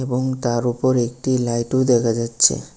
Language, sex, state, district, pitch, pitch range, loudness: Bengali, male, Tripura, West Tripura, 120 Hz, 120-130 Hz, -19 LUFS